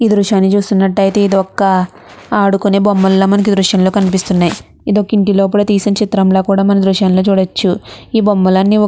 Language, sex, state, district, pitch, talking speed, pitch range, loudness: Telugu, female, Andhra Pradesh, Chittoor, 195 Hz, 175 wpm, 190-205 Hz, -12 LUFS